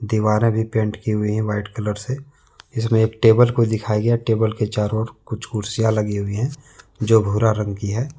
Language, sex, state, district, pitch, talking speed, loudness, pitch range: Hindi, male, Jharkhand, Deoghar, 110 Hz, 205 wpm, -20 LUFS, 105-115 Hz